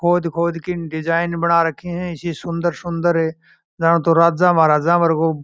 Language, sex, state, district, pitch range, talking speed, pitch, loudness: Marwari, male, Rajasthan, Churu, 165-175 Hz, 145 wpm, 170 Hz, -18 LUFS